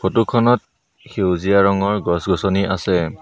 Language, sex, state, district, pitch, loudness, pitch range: Assamese, male, Assam, Sonitpur, 100 Hz, -18 LUFS, 95-105 Hz